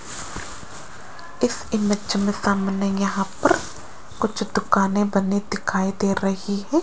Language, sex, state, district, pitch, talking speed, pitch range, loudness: Hindi, female, Rajasthan, Jaipur, 200 Hz, 115 wpm, 195-205 Hz, -23 LUFS